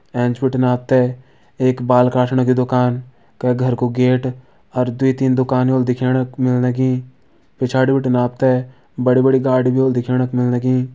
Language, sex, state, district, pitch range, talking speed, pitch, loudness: Hindi, male, Uttarakhand, Uttarkashi, 125-130 Hz, 185 wpm, 125 Hz, -17 LUFS